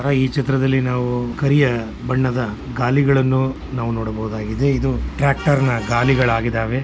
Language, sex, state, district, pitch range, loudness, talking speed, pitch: Kannada, male, Karnataka, Mysore, 120-135 Hz, -19 LUFS, 105 wpm, 130 Hz